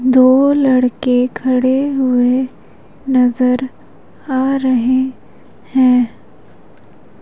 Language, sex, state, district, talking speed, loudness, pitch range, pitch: Hindi, female, Madhya Pradesh, Umaria, 65 wpm, -14 LUFS, 250-265 Hz, 255 Hz